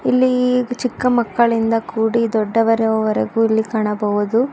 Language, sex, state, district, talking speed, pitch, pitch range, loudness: Kannada, female, Karnataka, Bangalore, 65 wpm, 225 Hz, 220-245 Hz, -17 LUFS